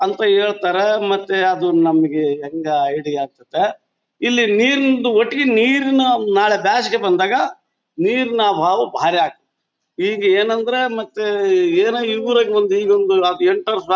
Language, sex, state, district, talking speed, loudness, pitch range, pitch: Kannada, male, Karnataka, Bellary, 135 wpm, -17 LUFS, 190-265 Hz, 220 Hz